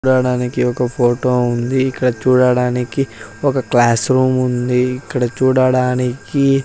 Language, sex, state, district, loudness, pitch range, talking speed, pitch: Telugu, male, Andhra Pradesh, Sri Satya Sai, -16 LUFS, 125-130 Hz, 110 wpm, 125 Hz